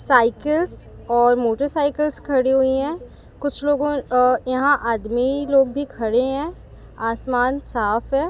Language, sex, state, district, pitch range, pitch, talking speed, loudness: Hindi, female, Chhattisgarh, Raipur, 245-285 Hz, 265 Hz, 125 wpm, -20 LUFS